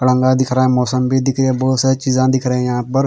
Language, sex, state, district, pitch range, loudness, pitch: Hindi, male, Bihar, Patna, 125-130 Hz, -15 LUFS, 130 Hz